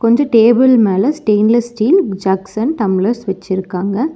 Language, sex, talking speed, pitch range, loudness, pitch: Tamil, female, 130 wpm, 195-240 Hz, -14 LUFS, 220 Hz